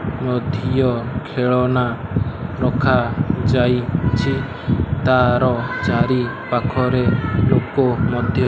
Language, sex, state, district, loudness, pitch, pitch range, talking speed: Odia, male, Odisha, Malkangiri, -19 LUFS, 125 Hz, 120-130 Hz, 55 wpm